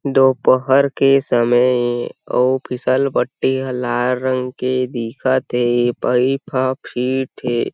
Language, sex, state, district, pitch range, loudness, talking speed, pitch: Chhattisgarhi, male, Chhattisgarh, Sarguja, 120-130 Hz, -17 LUFS, 125 wpm, 125 Hz